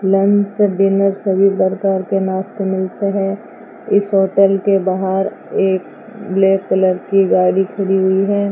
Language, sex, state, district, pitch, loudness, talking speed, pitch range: Hindi, female, Rajasthan, Bikaner, 195 Hz, -15 LUFS, 140 wpm, 190-200 Hz